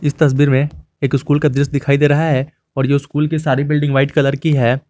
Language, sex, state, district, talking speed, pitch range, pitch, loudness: Hindi, male, Jharkhand, Garhwa, 245 wpm, 135-150 Hz, 145 Hz, -16 LUFS